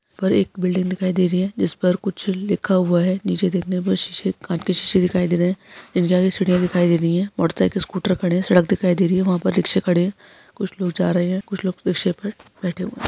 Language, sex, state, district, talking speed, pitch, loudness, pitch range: Hindi, male, Uttarakhand, Tehri Garhwal, 280 wpm, 185 Hz, -20 LUFS, 180-190 Hz